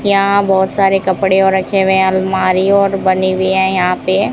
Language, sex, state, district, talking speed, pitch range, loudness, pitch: Hindi, female, Rajasthan, Bikaner, 210 wpm, 190-195 Hz, -13 LUFS, 190 Hz